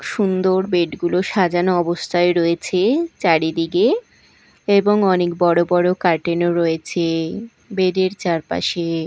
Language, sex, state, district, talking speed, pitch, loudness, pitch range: Bengali, female, Odisha, Malkangiri, 110 wpm, 175 Hz, -18 LUFS, 170-190 Hz